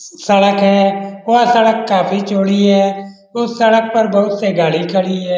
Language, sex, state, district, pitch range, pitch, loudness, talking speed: Hindi, male, Bihar, Lakhisarai, 195-225 Hz, 200 Hz, -13 LUFS, 165 wpm